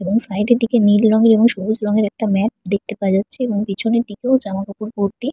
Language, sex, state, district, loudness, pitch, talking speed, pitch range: Bengali, female, West Bengal, Purulia, -17 LUFS, 215 Hz, 225 wpm, 200-230 Hz